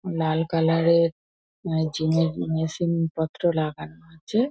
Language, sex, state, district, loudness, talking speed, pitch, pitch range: Bengali, female, West Bengal, North 24 Parganas, -24 LUFS, 120 wpm, 160 Hz, 160-170 Hz